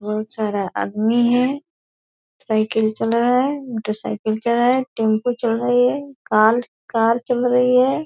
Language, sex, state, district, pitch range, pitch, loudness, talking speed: Hindi, female, Bihar, Purnia, 220-250 Hz, 235 Hz, -19 LUFS, 165 wpm